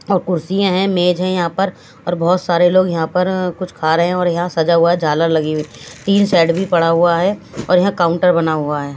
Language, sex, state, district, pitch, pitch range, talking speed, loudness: Hindi, female, Maharashtra, Gondia, 175 Hz, 165-185 Hz, 255 wpm, -15 LUFS